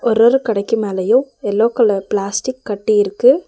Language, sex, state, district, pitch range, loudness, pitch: Tamil, female, Tamil Nadu, Nilgiris, 205-240 Hz, -16 LUFS, 220 Hz